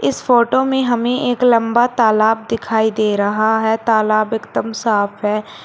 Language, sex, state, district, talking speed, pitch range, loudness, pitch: Hindi, female, Uttar Pradesh, Shamli, 160 wpm, 215-240 Hz, -16 LUFS, 220 Hz